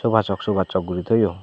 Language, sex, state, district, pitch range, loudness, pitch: Chakma, male, Tripura, Dhalai, 95-110 Hz, -22 LUFS, 100 Hz